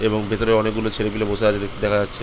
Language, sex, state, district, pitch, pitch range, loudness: Bengali, male, West Bengal, Jhargram, 110 Hz, 105-110 Hz, -21 LUFS